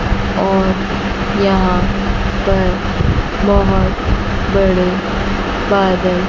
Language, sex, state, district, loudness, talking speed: Hindi, female, Chandigarh, Chandigarh, -15 LUFS, 55 wpm